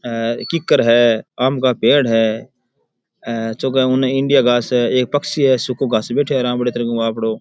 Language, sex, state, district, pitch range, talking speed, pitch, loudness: Rajasthani, male, Rajasthan, Churu, 115-130 Hz, 155 wpm, 125 Hz, -16 LUFS